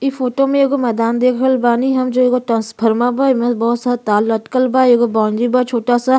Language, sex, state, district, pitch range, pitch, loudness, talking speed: Bhojpuri, female, Uttar Pradesh, Gorakhpur, 235-255 Hz, 245 Hz, -15 LUFS, 235 wpm